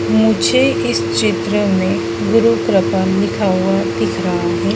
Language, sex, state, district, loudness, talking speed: Hindi, female, Madhya Pradesh, Dhar, -15 LUFS, 140 wpm